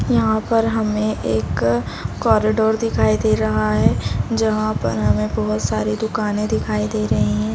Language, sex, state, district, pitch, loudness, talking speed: Hindi, female, Uttar Pradesh, Deoria, 110 Hz, -19 LUFS, 150 wpm